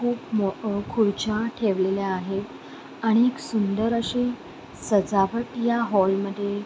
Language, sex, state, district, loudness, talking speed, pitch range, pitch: Marathi, female, Maharashtra, Sindhudurg, -24 LUFS, 115 wpm, 200-235 Hz, 215 Hz